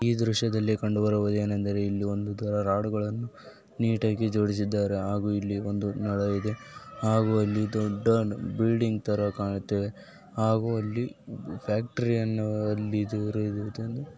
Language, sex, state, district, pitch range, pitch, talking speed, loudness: Kannada, male, Karnataka, Bijapur, 105-110 Hz, 105 Hz, 95 wpm, -28 LUFS